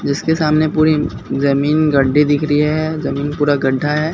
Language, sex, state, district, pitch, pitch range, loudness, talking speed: Hindi, male, Bihar, Katihar, 150 Hz, 140-155 Hz, -15 LUFS, 175 wpm